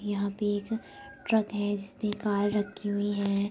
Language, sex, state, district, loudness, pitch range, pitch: Hindi, female, Uttar Pradesh, Budaun, -30 LUFS, 205-210 Hz, 205 Hz